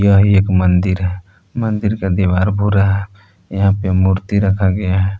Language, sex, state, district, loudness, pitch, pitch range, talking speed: Hindi, male, Jharkhand, Palamu, -15 LUFS, 95 Hz, 95-100 Hz, 175 wpm